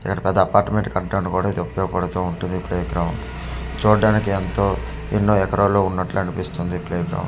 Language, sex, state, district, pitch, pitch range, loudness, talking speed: Telugu, male, Andhra Pradesh, Manyam, 95 Hz, 90-100 Hz, -21 LUFS, 165 wpm